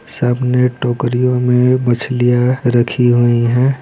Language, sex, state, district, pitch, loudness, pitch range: Hindi, male, Bihar, Araria, 125 Hz, -14 LUFS, 120-125 Hz